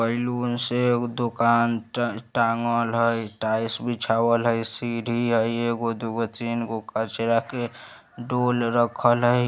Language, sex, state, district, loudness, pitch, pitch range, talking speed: Bajjika, male, Bihar, Vaishali, -24 LUFS, 115 Hz, 115-120 Hz, 140 wpm